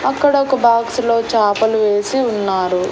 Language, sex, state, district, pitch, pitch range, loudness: Telugu, female, Andhra Pradesh, Annamaya, 230 Hz, 205-255 Hz, -15 LUFS